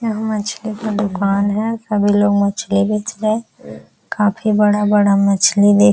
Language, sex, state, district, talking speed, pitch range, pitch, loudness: Hindi, female, Bihar, Araria, 160 wpm, 200-215 Hz, 210 Hz, -16 LUFS